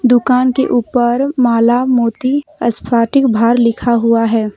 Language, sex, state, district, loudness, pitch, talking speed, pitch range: Hindi, female, Jharkhand, Deoghar, -13 LUFS, 245 Hz, 130 wpm, 230-255 Hz